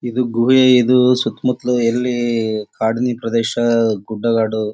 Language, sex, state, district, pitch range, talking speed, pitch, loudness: Kannada, male, Karnataka, Bellary, 110-125 Hz, 115 wpm, 120 Hz, -16 LUFS